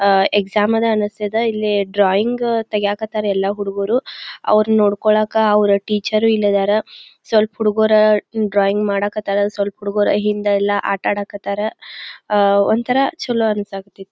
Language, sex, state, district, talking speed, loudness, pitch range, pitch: Kannada, female, Karnataka, Belgaum, 120 wpm, -17 LUFS, 200-215 Hz, 210 Hz